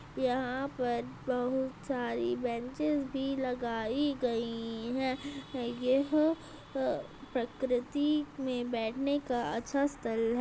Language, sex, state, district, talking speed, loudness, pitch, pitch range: Hindi, female, Uttar Pradesh, Budaun, 100 wpm, -33 LUFS, 255 Hz, 240-275 Hz